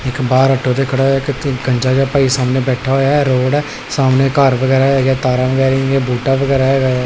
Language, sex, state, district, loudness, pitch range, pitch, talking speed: Punjabi, female, Punjab, Pathankot, -14 LUFS, 130-135 Hz, 135 Hz, 195 wpm